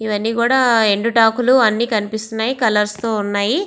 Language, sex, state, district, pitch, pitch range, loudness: Telugu, female, Andhra Pradesh, Visakhapatnam, 225 Hz, 215-235 Hz, -16 LUFS